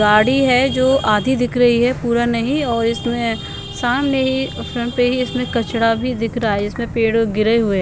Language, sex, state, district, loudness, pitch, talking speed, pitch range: Hindi, female, Bihar, Patna, -17 LUFS, 240 Hz, 205 wpm, 230-255 Hz